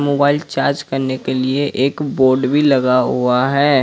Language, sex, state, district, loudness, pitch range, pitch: Hindi, male, Jharkhand, Ranchi, -16 LUFS, 130-145 Hz, 135 Hz